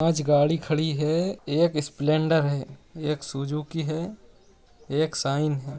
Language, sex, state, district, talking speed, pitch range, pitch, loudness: Hindi, male, Bihar, Jahanabad, 135 wpm, 145-160 Hz, 150 Hz, -25 LUFS